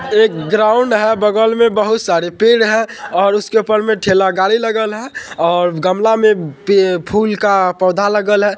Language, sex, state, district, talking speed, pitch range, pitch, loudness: Hindi, male, Bihar, Purnia, 190 wpm, 190-220 Hz, 210 Hz, -13 LUFS